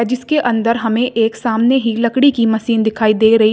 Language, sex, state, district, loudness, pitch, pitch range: Hindi, female, Uttar Pradesh, Shamli, -14 LUFS, 230 Hz, 225-245 Hz